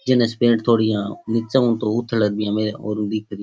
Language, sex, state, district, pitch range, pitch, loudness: Rajasthani, male, Rajasthan, Churu, 105-120 Hz, 110 Hz, -20 LUFS